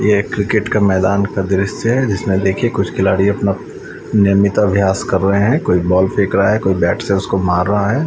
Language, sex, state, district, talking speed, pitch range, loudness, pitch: Hindi, male, Chandigarh, Chandigarh, 225 wpm, 95-105 Hz, -15 LUFS, 100 Hz